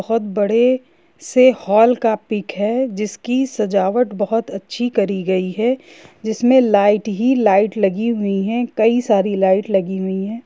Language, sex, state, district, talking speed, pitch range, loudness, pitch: Hindi, female, Jharkhand, Jamtara, 155 wpm, 200-240 Hz, -17 LUFS, 215 Hz